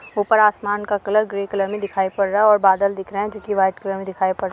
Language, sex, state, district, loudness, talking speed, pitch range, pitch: Hindi, female, Uttar Pradesh, Varanasi, -19 LUFS, 315 wpm, 195-205 Hz, 200 Hz